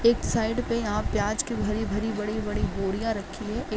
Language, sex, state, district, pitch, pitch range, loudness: Hindi, female, Uttar Pradesh, Jalaun, 215 Hz, 210-230 Hz, -28 LUFS